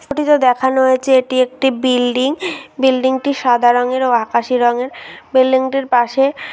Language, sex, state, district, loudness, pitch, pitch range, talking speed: Bengali, female, West Bengal, Dakshin Dinajpur, -15 LUFS, 260 Hz, 245-270 Hz, 140 wpm